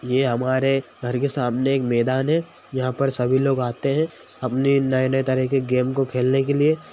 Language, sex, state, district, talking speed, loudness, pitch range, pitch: Hindi, male, Bihar, Madhepura, 190 wpm, -21 LUFS, 125-135 Hz, 130 Hz